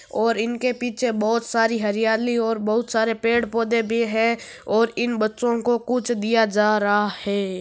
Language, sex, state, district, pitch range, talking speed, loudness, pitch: Marwari, female, Rajasthan, Nagaur, 220-235 Hz, 165 wpm, -21 LUFS, 230 Hz